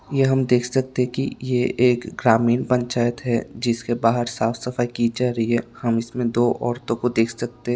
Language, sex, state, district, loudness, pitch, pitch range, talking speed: Hindi, male, Tripura, West Tripura, -21 LUFS, 120 Hz, 120-125 Hz, 195 wpm